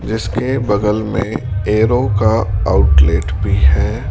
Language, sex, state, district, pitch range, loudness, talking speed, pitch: Hindi, male, Rajasthan, Jaipur, 95-110 Hz, -15 LUFS, 115 wpm, 105 Hz